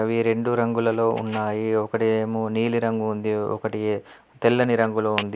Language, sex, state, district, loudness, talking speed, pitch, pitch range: Telugu, male, Telangana, Adilabad, -23 LUFS, 145 wpm, 110 Hz, 110-115 Hz